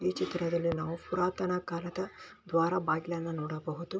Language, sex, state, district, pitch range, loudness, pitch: Kannada, male, Karnataka, Belgaum, 165-180 Hz, -33 LUFS, 170 Hz